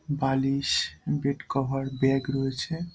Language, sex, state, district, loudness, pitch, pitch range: Bengali, male, West Bengal, Purulia, -27 LUFS, 135 Hz, 135-140 Hz